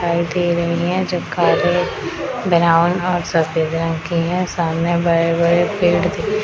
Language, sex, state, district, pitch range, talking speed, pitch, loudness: Hindi, female, Bihar, Madhepura, 165-180 Hz, 160 wpm, 170 Hz, -17 LUFS